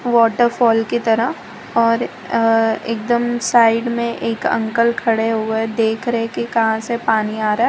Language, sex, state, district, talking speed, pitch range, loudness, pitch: Hindi, female, Gujarat, Valsad, 165 wpm, 225-235 Hz, -17 LUFS, 230 Hz